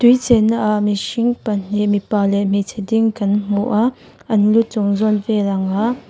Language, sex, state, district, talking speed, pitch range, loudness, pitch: Mizo, female, Mizoram, Aizawl, 175 wpm, 205-225 Hz, -17 LUFS, 210 Hz